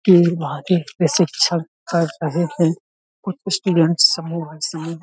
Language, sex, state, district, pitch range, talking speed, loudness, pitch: Hindi, male, Uttar Pradesh, Budaun, 165-175 Hz, 155 wpm, -19 LUFS, 170 Hz